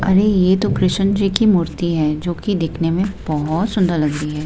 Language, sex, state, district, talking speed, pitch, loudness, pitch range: Hindi, female, Himachal Pradesh, Shimla, 215 wpm, 180 Hz, -17 LUFS, 160-195 Hz